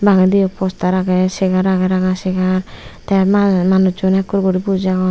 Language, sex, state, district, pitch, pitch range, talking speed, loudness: Chakma, female, Tripura, Unakoti, 190 Hz, 185-190 Hz, 175 wpm, -15 LUFS